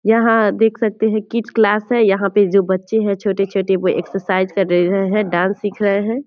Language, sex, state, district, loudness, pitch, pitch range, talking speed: Hindi, female, Bihar, Purnia, -16 LUFS, 205 Hz, 195-220 Hz, 220 wpm